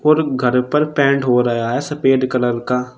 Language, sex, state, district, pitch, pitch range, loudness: Hindi, male, Uttar Pradesh, Shamli, 130 Hz, 125-145 Hz, -16 LUFS